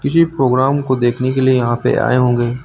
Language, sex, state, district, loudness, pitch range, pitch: Hindi, male, Uttar Pradesh, Lucknow, -15 LUFS, 125-130 Hz, 130 Hz